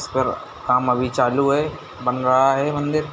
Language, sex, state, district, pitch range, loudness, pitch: Hindi, male, Bihar, Gopalganj, 125-145 Hz, -20 LUFS, 130 Hz